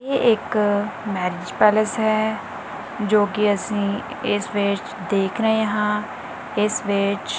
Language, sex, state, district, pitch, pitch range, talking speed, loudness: Punjabi, female, Punjab, Kapurthala, 210 Hz, 200-215 Hz, 120 wpm, -21 LUFS